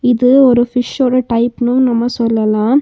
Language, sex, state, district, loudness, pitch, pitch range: Tamil, female, Tamil Nadu, Nilgiris, -13 LUFS, 245 Hz, 235-255 Hz